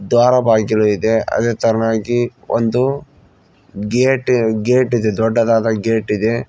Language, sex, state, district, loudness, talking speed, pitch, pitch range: Kannada, male, Karnataka, Koppal, -16 LUFS, 110 wpm, 115 Hz, 110-120 Hz